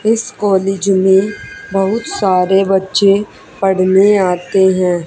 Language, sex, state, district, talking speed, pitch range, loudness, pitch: Hindi, female, Haryana, Charkhi Dadri, 105 wpm, 185-200 Hz, -13 LUFS, 195 Hz